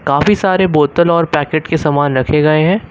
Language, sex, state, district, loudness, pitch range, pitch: Hindi, male, Uttar Pradesh, Lucknow, -13 LUFS, 150-170 Hz, 155 Hz